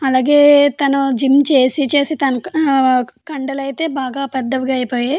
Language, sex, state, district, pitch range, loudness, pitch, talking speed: Telugu, female, Andhra Pradesh, Anantapur, 260-285 Hz, -15 LUFS, 275 Hz, 125 wpm